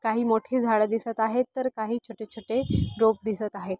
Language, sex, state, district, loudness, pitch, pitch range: Marathi, female, Maharashtra, Aurangabad, -26 LUFS, 225 Hz, 220-235 Hz